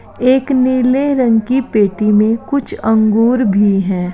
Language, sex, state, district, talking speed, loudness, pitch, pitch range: Hindi, female, Bihar, Kishanganj, 145 wpm, -13 LUFS, 230 Hz, 210-255 Hz